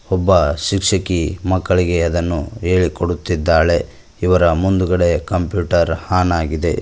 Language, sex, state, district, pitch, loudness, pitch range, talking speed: Kannada, male, Karnataka, Koppal, 90 Hz, -17 LUFS, 85-90 Hz, 95 wpm